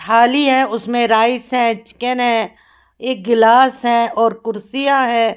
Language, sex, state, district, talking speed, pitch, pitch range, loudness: Hindi, female, Haryana, Jhajjar, 145 wpm, 235 Hz, 225-250 Hz, -15 LUFS